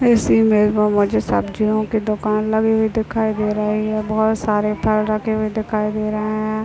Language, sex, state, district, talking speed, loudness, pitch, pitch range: Hindi, female, Chhattisgarh, Bilaspur, 200 wpm, -18 LUFS, 215 Hz, 210-220 Hz